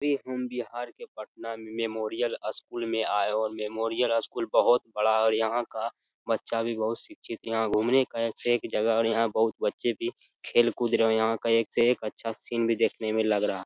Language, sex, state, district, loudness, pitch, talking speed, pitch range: Hindi, male, Bihar, Jamui, -28 LUFS, 115 Hz, 250 wpm, 110-120 Hz